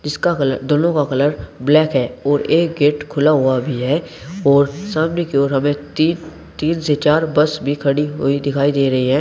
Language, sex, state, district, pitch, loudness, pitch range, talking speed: Hindi, male, Uttar Pradesh, Saharanpur, 145 Hz, -17 LUFS, 140-155 Hz, 200 wpm